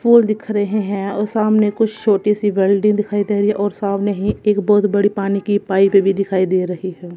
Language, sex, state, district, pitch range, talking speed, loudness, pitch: Hindi, female, Punjab, Kapurthala, 195-210 Hz, 235 wpm, -17 LUFS, 205 Hz